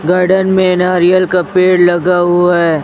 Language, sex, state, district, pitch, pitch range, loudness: Hindi, female, Chhattisgarh, Raipur, 180 Hz, 175-185 Hz, -11 LUFS